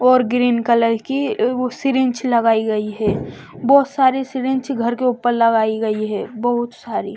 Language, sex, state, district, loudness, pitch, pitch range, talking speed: Hindi, female, Bihar, West Champaran, -18 LUFS, 240 Hz, 225-260 Hz, 165 wpm